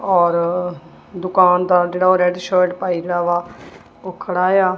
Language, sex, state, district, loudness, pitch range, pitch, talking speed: Punjabi, female, Punjab, Kapurthala, -17 LUFS, 175-185 Hz, 180 Hz, 140 wpm